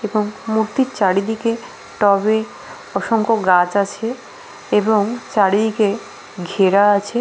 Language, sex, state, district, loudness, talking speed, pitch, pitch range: Bengali, female, West Bengal, Paschim Medinipur, -17 LUFS, 100 wpm, 210 Hz, 200-225 Hz